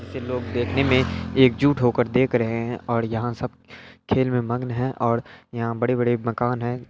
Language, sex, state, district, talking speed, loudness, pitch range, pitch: Hindi, male, Bihar, Araria, 210 wpm, -23 LUFS, 115-125 Hz, 120 Hz